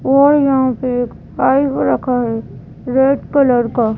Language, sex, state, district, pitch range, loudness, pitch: Hindi, female, Madhya Pradesh, Bhopal, 245-275 Hz, -15 LUFS, 255 Hz